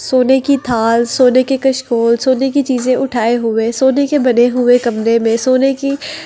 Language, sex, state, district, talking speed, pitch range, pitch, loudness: Hindi, female, Delhi, New Delhi, 190 wpm, 235-270 Hz, 255 Hz, -13 LUFS